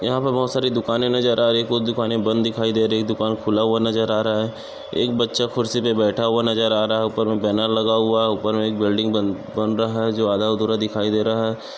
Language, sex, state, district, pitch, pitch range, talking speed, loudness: Hindi, male, Maharashtra, Chandrapur, 110 Hz, 110-115 Hz, 260 wpm, -20 LUFS